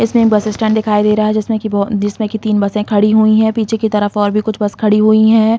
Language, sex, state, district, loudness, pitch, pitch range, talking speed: Hindi, female, Uttar Pradesh, Hamirpur, -13 LUFS, 215 Hz, 210-220 Hz, 280 wpm